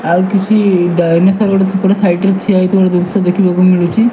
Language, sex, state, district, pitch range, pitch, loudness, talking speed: Odia, male, Odisha, Malkangiri, 180-195 Hz, 190 Hz, -11 LUFS, 160 wpm